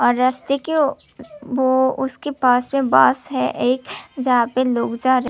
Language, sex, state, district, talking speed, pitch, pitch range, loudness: Hindi, female, Tripura, Unakoti, 145 wpm, 260 Hz, 250-275 Hz, -19 LUFS